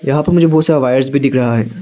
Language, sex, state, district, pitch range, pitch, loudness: Hindi, male, Arunachal Pradesh, Lower Dibang Valley, 130-155 Hz, 140 Hz, -12 LUFS